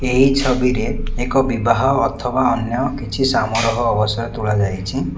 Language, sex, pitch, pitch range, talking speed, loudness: Odia, male, 120 Hz, 110-135 Hz, 125 wpm, -18 LUFS